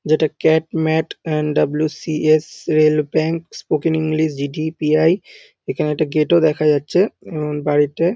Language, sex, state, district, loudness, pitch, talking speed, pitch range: Bengali, male, West Bengal, North 24 Parganas, -18 LUFS, 155 Hz, 130 wpm, 150-160 Hz